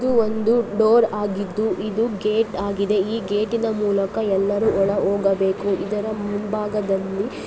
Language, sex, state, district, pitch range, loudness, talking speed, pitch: Kannada, female, Karnataka, Raichur, 200-220 Hz, -21 LUFS, 120 wpm, 210 Hz